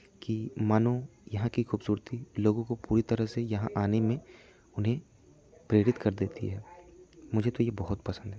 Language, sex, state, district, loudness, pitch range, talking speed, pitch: Hindi, male, Jharkhand, Sahebganj, -31 LUFS, 105-120 Hz, 170 wpm, 110 Hz